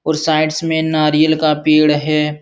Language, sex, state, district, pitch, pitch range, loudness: Hindi, male, Uttar Pradesh, Jalaun, 155 Hz, 150-160 Hz, -14 LUFS